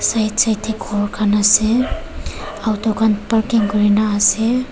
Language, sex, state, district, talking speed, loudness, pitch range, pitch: Nagamese, female, Nagaland, Kohima, 140 wpm, -16 LUFS, 210-225 Hz, 220 Hz